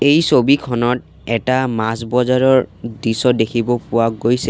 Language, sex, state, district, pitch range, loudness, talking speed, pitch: Assamese, male, Assam, Sonitpur, 115-130 Hz, -16 LUFS, 120 wpm, 120 Hz